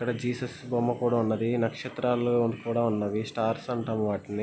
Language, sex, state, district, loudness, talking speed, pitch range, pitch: Telugu, male, Andhra Pradesh, Guntur, -28 LUFS, 150 wpm, 110-120 Hz, 120 Hz